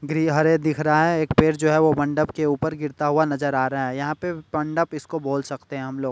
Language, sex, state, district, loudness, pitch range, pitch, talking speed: Hindi, male, Delhi, New Delhi, -22 LUFS, 140-155 Hz, 155 Hz, 275 wpm